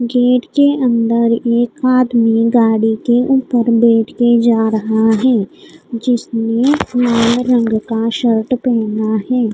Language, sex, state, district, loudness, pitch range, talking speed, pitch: Hindi, female, Odisha, Khordha, -14 LUFS, 225-250 Hz, 125 wpm, 235 Hz